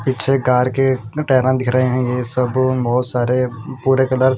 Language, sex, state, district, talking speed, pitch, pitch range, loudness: Hindi, male, Punjab, Kapurthala, 190 wpm, 130 Hz, 125-130 Hz, -17 LUFS